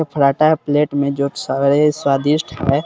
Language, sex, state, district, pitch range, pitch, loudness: Hindi, male, Bihar, Sitamarhi, 140-150 Hz, 145 Hz, -16 LUFS